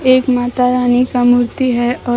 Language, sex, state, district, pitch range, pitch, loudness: Hindi, female, Bihar, Kaimur, 245-250 Hz, 245 Hz, -13 LUFS